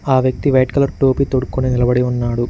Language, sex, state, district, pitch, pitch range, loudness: Telugu, male, Telangana, Mahabubabad, 130 Hz, 125-135 Hz, -16 LUFS